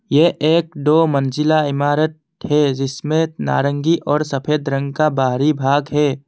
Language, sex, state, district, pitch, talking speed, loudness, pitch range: Hindi, male, Assam, Kamrup Metropolitan, 150 Hz, 145 wpm, -17 LUFS, 140-155 Hz